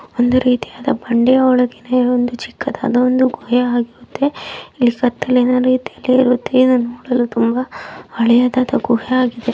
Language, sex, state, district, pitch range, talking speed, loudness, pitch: Kannada, female, Karnataka, Mysore, 240-255 Hz, 95 wpm, -16 LUFS, 250 Hz